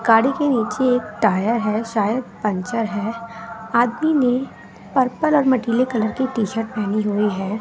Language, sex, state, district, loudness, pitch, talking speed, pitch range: Hindi, female, Bihar, West Champaran, -20 LUFS, 230 Hz, 155 wpm, 215-250 Hz